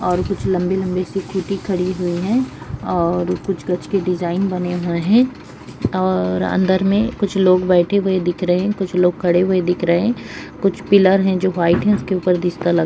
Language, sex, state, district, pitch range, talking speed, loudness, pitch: Hindi, female, Bihar, Madhepura, 175-195 Hz, 205 wpm, -18 LUFS, 185 Hz